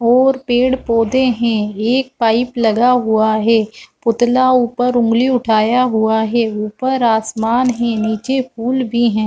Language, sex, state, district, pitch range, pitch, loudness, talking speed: Hindi, female, Chhattisgarh, Bastar, 220-250 Hz, 235 Hz, -15 LUFS, 140 wpm